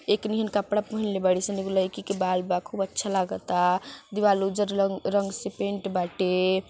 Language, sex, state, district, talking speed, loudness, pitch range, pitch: Bhojpuri, female, Uttar Pradesh, Ghazipur, 190 wpm, -26 LUFS, 185-205 Hz, 195 Hz